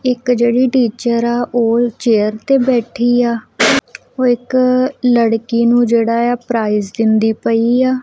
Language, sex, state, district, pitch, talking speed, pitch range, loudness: Punjabi, female, Punjab, Kapurthala, 240 Hz, 140 wpm, 230-250 Hz, -14 LUFS